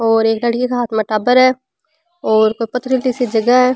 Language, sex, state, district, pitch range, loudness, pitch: Rajasthani, female, Rajasthan, Churu, 225-255 Hz, -15 LUFS, 245 Hz